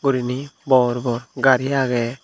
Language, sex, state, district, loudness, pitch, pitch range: Chakma, male, Tripura, Dhalai, -20 LUFS, 130 Hz, 120-135 Hz